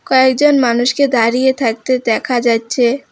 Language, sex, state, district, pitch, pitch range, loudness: Bengali, female, West Bengal, Alipurduar, 250 Hz, 235-260 Hz, -14 LUFS